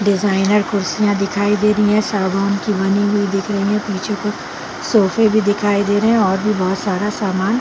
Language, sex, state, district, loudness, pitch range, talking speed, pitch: Hindi, female, Chhattisgarh, Bilaspur, -17 LUFS, 195-210 Hz, 190 wpm, 205 Hz